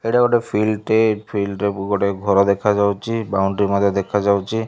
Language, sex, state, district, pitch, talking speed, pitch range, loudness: Odia, male, Odisha, Malkangiri, 100 Hz, 180 wpm, 100-110 Hz, -18 LUFS